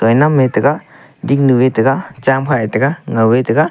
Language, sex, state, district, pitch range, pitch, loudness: Wancho, male, Arunachal Pradesh, Longding, 115-140 Hz, 130 Hz, -13 LUFS